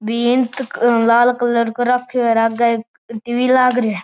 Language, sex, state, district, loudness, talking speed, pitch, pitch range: Marwari, male, Rajasthan, Churu, -16 LUFS, 180 wpm, 240 Hz, 230-250 Hz